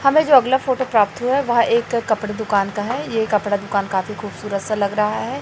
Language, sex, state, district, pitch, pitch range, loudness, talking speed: Hindi, male, Chhattisgarh, Raipur, 215 Hz, 205-250 Hz, -19 LUFS, 245 wpm